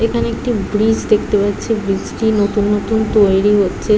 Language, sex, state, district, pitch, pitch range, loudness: Bengali, female, West Bengal, Jhargram, 210 Hz, 205-225 Hz, -15 LUFS